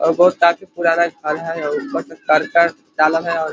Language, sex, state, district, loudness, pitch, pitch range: Hindi, male, Chhattisgarh, Korba, -17 LUFS, 165 Hz, 155-170 Hz